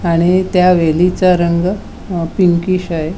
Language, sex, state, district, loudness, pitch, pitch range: Marathi, female, Goa, North and South Goa, -13 LUFS, 180 Hz, 170-185 Hz